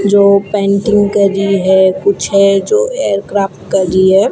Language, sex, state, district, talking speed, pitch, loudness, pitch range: Hindi, female, Rajasthan, Bikaner, 150 wpm, 200 Hz, -11 LUFS, 195-200 Hz